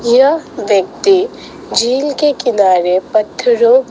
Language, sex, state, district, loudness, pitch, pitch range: Hindi, female, Assam, Sonitpur, -13 LUFS, 280 Hz, 225-375 Hz